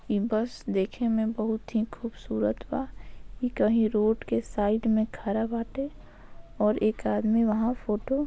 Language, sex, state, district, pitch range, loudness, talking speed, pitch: Bhojpuri, female, Bihar, Saran, 210-230 Hz, -28 LUFS, 160 wpm, 220 Hz